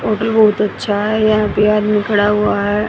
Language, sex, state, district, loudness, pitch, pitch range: Hindi, female, Haryana, Rohtak, -14 LUFS, 210 Hz, 210-215 Hz